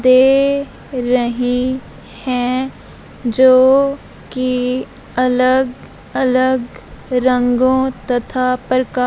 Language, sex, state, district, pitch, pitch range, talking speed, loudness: Hindi, female, Punjab, Fazilka, 255 Hz, 250-260 Hz, 65 wpm, -16 LUFS